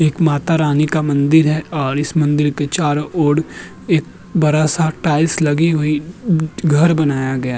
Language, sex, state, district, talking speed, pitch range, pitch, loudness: Hindi, male, Uttar Pradesh, Jyotiba Phule Nagar, 180 wpm, 145-160 Hz, 155 Hz, -16 LUFS